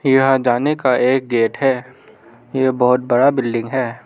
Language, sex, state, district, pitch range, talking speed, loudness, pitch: Hindi, male, Arunachal Pradesh, Lower Dibang Valley, 120-135 Hz, 165 wpm, -16 LUFS, 125 Hz